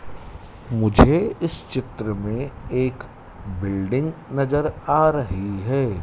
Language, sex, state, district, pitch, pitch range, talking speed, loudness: Hindi, male, Madhya Pradesh, Dhar, 115 Hz, 100-135 Hz, 100 wpm, -22 LUFS